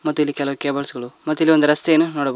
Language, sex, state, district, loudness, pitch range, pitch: Kannada, male, Karnataka, Koppal, -18 LUFS, 140-155 Hz, 150 Hz